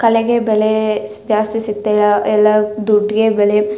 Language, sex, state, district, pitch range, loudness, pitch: Kannada, female, Karnataka, Chamarajanagar, 210-220 Hz, -14 LUFS, 215 Hz